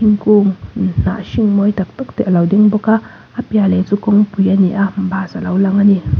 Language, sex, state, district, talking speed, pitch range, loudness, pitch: Mizo, female, Mizoram, Aizawl, 205 wpm, 195-210 Hz, -14 LUFS, 200 Hz